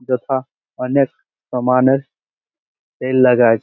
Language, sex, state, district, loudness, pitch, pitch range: Bengali, male, West Bengal, Malda, -17 LUFS, 130 Hz, 125-135 Hz